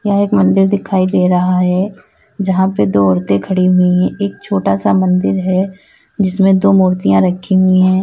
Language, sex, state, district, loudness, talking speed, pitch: Hindi, female, Uttar Pradesh, Lalitpur, -13 LUFS, 180 wpm, 185 Hz